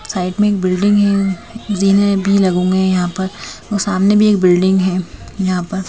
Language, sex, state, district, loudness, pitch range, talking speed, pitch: Hindi, female, Madhya Pradesh, Bhopal, -15 LUFS, 185-200 Hz, 205 wpm, 195 Hz